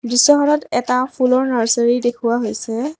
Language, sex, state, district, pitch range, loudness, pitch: Assamese, female, Assam, Kamrup Metropolitan, 235-260 Hz, -17 LUFS, 245 Hz